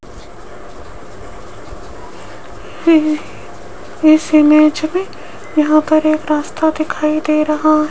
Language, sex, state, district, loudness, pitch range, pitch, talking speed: Hindi, female, Rajasthan, Jaipur, -14 LUFS, 305-310 Hz, 310 Hz, 85 wpm